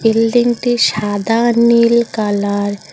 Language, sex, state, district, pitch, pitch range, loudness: Bengali, female, West Bengal, Cooch Behar, 225 Hz, 205-235 Hz, -14 LUFS